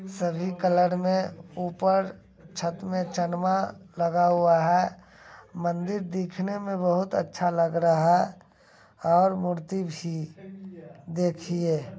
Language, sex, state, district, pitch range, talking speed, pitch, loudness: Angika, male, Bihar, Begusarai, 170-185 Hz, 115 wpm, 175 Hz, -26 LUFS